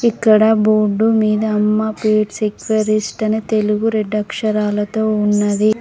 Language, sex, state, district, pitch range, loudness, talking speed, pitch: Telugu, female, Telangana, Mahabubabad, 210-220 Hz, -16 LUFS, 115 wpm, 215 Hz